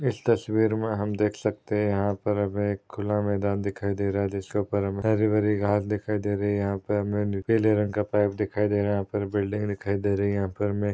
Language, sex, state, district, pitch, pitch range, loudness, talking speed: Hindi, male, Maharashtra, Chandrapur, 105 Hz, 100-105 Hz, -26 LUFS, 260 wpm